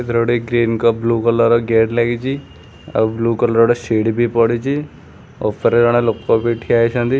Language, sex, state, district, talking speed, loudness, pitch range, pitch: Odia, male, Odisha, Khordha, 190 wpm, -16 LUFS, 115-120 Hz, 115 Hz